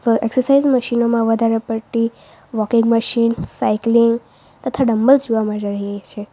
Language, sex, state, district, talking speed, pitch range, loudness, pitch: Gujarati, female, Gujarat, Valsad, 135 wpm, 220-240 Hz, -17 LUFS, 230 Hz